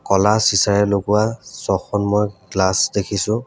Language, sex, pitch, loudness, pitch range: Assamese, male, 100 Hz, -18 LUFS, 100-105 Hz